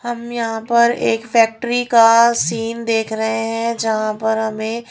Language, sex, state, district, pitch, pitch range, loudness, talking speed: Hindi, female, Haryana, Rohtak, 225 Hz, 220-235 Hz, -17 LUFS, 160 wpm